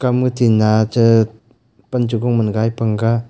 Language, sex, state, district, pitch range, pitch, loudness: Wancho, male, Arunachal Pradesh, Longding, 110-120 Hz, 115 Hz, -16 LUFS